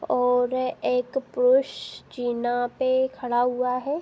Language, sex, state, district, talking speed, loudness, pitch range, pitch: Hindi, female, Uttar Pradesh, Deoria, 120 wpm, -24 LUFS, 245-260 Hz, 250 Hz